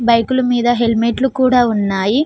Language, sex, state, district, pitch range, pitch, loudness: Telugu, female, Telangana, Mahabubabad, 230-255 Hz, 240 Hz, -15 LUFS